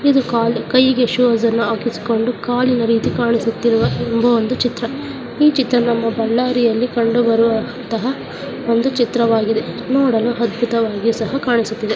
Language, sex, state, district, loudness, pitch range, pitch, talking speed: Kannada, female, Karnataka, Bellary, -17 LUFS, 230-245 Hz, 235 Hz, 115 wpm